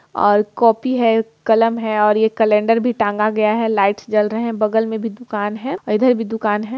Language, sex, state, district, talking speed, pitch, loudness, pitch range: Hindi, female, Bihar, Muzaffarpur, 230 wpm, 220 Hz, -17 LUFS, 210-230 Hz